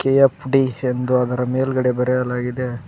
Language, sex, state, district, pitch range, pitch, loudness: Kannada, male, Karnataka, Koppal, 125-130 Hz, 125 Hz, -19 LUFS